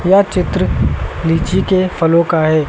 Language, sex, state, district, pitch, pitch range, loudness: Hindi, male, Uttar Pradesh, Lucknow, 170 Hz, 165-185 Hz, -14 LUFS